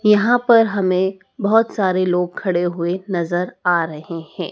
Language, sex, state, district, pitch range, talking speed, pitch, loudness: Hindi, male, Madhya Pradesh, Dhar, 175-210 Hz, 160 wpm, 185 Hz, -18 LUFS